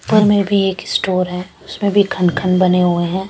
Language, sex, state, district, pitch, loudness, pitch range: Hindi, female, Chandigarh, Chandigarh, 185 Hz, -15 LUFS, 180-200 Hz